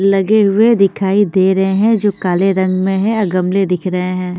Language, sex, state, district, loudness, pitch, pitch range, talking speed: Hindi, female, Bihar, Patna, -14 LUFS, 195 Hz, 185-205 Hz, 220 wpm